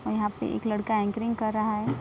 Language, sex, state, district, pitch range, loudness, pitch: Hindi, female, Bihar, Sitamarhi, 210-220 Hz, -28 LUFS, 215 Hz